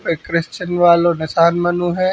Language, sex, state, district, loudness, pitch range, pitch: Hindi, male, Uttar Pradesh, Hamirpur, -16 LUFS, 170-175 Hz, 175 Hz